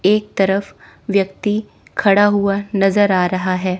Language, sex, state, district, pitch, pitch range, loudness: Hindi, female, Chandigarh, Chandigarh, 200 Hz, 190-205 Hz, -17 LUFS